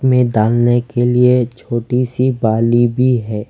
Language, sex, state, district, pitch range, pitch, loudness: Hindi, male, Himachal Pradesh, Shimla, 115-125 Hz, 120 Hz, -14 LUFS